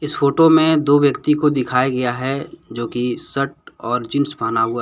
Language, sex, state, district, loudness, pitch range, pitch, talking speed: Hindi, male, Jharkhand, Deoghar, -18 LUFS, 120-145 Hz, 135 Hz, 185 wpm